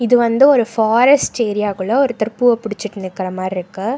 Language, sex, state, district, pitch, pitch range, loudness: Tamil, female, Karnataka, Bangalore, 225 Hz, 200-245 Hz, -16 LUFS